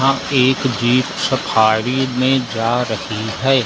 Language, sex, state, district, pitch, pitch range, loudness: Hindi, male, Madhya Pradesh, Umaria, 125 Hz, 110-130 Hz, -17 LUFS